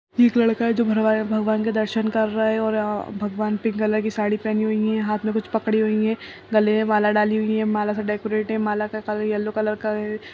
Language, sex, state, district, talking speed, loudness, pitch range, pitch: Kumaoni, male, Uttarakhand, Uttarkashi, 265 wpm, -22 LUFS, 210-220 Hz, 215 Hz